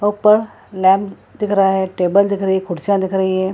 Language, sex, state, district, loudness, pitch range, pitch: Hindi, female, Bihar, Gaya, -16 LUFS, 190-200 Hz, 195 Hz